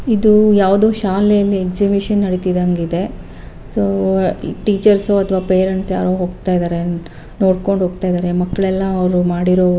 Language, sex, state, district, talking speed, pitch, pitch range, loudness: Kannada, female, Karnataka, Bellary, 115 wpm, 185 Hz, 175-195 Hz, -15 LUFS